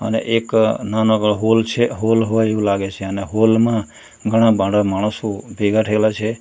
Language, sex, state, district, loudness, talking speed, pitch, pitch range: Gujarati, male, Gujarat, Valsad, -17 LUFS, 185 wpm, 110 Hz, 105-110 Hz